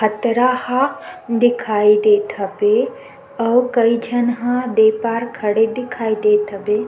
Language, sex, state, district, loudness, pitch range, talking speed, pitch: Chhattisgarhi, female, Chhattisgarh, Sukma, -17 LUFS, 220-250 Hz, 130 wpm, 235 Hz